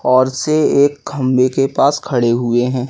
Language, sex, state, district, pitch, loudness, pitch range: Hindi, male, Madhya Pradesh, Katni, 130 Hz, -15 LUFS, 125-140 Hz